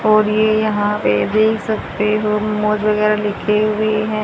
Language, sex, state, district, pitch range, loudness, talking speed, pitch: Hindi, female, Haryana, Jhajjar, 210-215 Hz, -16 LUFS, 170 wpm, 215 Hz